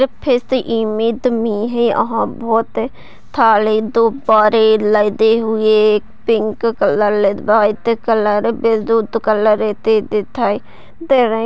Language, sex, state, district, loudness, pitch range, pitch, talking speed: Hindi, female, Maharashtra, Sindhudurg, -15 LUFS, 215-230 Hz, 220 Hz, 100 wpm